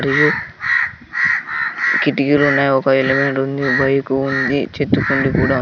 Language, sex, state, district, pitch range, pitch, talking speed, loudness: Telugu, male, Andhra Pradesh, Sri Satya Sai, 135-140 Hz, 135 Hz, 105 wpm, -16 LUFS